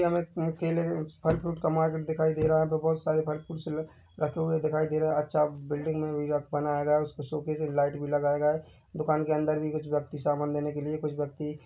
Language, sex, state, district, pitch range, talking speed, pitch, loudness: Hindi, male, Chhattisgarh, Bilaspur, 150-160 Hz, 255 wpm, 155 Hz, -29 LUFS